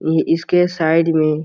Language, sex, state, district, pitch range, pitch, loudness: Chhattisgarhi, male, Chhattisgarh, Jashpur, 160-165 Hz, 165 Hz, -16 LUFS